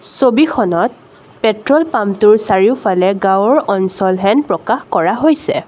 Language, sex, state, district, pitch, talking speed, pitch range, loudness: Assamese, female, Assam, Kamrup Metropolitan, 215 Hz, 105 wpm, 195-295 Hz, -13 LUFS